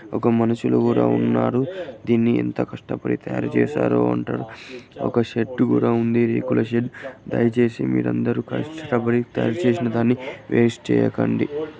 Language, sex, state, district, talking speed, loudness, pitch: Telugu, male, Andhra Pradesh, Guntur, 120 wpm, -21 LUFS, 115 Hz